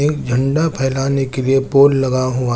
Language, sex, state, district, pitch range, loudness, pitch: Hindi, male, Chandigarh, Chandigarh, 130-140 Hz, -16 LUFS, 135 Hz